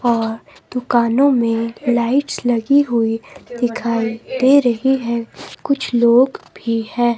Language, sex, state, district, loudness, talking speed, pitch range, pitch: Hindi, female, Himachal Pradesh, Shimla, -17 LUFS, 115 wpm, 230-260 Hz, 240 Hz